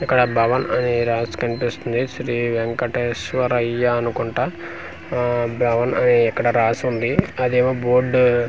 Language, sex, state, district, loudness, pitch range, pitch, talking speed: Telugu, male, Andhra Pradesh, Manyam, -20 LUFS, 120-125 Hz, 120 Hz, 120 wpm